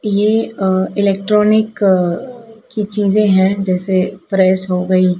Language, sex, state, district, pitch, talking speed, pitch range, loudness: Hindi, female, Madhya Pradesh, Dhar, 195 Hz, 125 wpm, 185-210 Hz, -14 LUFS